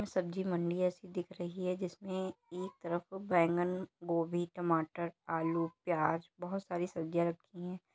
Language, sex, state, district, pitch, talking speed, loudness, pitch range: Hindi, female, Uttar Pradesh, Deoria, 175 Hz, 145 wpm, -37 LUFS, 170-185 Hz